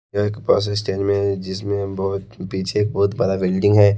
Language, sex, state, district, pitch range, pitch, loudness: Hindi, male, Haryana, Rohtak, 95-105 Hz, 100 Hz, -20 LUFS